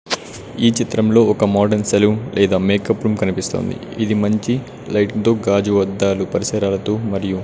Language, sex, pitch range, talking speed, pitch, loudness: Telugu, male, 100-110 Hz, 135 wpm, 105 Hz, -17 LUFS